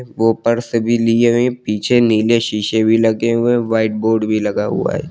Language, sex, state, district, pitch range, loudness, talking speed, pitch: Hindi, male, Uttar Pradesh, Lucknow, 110-120 Hz, -15 LUFS, 210 wpm, 115 Hz